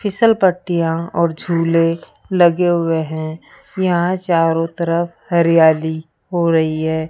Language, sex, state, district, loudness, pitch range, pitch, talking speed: Hindi, female, Rajasthan, Jaipur, -16 LUFS, 160-175 Hz, 170 Hz, 110 wpm